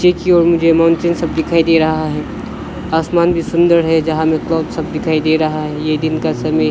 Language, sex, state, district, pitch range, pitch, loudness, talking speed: Hindi, male, Arunachal Pradesh, Lower Dibang Valley, 155-170 Hz, 160 Hz, -14 LUFS, 225 wpm